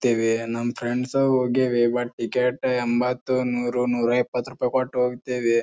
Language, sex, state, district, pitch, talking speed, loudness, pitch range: Kannada, male, Karnataka, Bijapur, 125 Hz, 140 wpm, -23 LUFS, 120-125 Hz